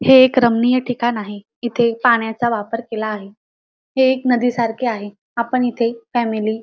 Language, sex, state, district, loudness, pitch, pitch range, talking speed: Marathi, female, Maharashtra, Dhule, -18 LUFS, 235 Hz, 225-245 Hz, 165 wpm